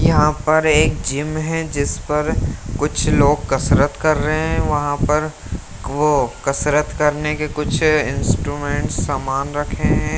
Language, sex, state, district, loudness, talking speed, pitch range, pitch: Hindi, male, Bihar, Lakhisarai, -18 LUFS, 140 wpm, 145-155 Hz, 150 Hz